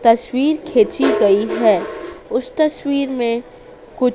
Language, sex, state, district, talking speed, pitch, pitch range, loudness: Hindi, female, Madhya Pradesh, Dhar, 115 wpm, 275 Hz, 235-315 Hz, -17 LUFS